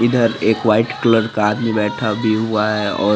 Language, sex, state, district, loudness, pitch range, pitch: Hindi, male, Chandigarh, Chandigarh, -17 LUFS, 105-115 Hz, 110 Hz